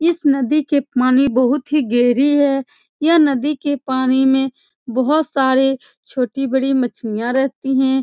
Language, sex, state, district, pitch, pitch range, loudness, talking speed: Hindi, female, Bihar, Saran, 270 Hz, 260-285 Hz, -17 LUFS, 150 wpm